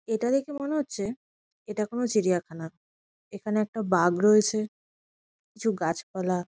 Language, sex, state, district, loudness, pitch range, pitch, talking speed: Bengali, female, West Bengal, Kolkata, -27 LUFS, 185-225 Hz, 210 Hz, 120 wpm